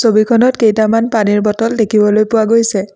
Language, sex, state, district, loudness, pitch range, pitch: Assamese, female, Assam, Sonitpur, -12 LUFS, 210-230 Hz, 220 Hz